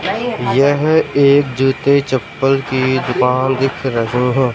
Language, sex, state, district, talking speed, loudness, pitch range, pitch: Hindi, male, Madhya Pradesh, Katni, 120 wpm, -15 LUFS, 130-140 Hz, 135 Hz